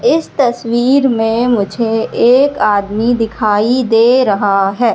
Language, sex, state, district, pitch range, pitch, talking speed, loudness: Hindi, female, Madhya Pradesh, Katni, 215-245 Hz, 235 Hz, 120 wpm, -12 LUFS